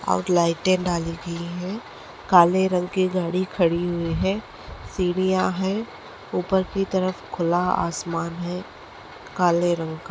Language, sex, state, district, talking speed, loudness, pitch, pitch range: Hindi, female, Maharashtra, Nagpur, 135 wpm, -23 LUFS, 180 Hz, 170-185 Hz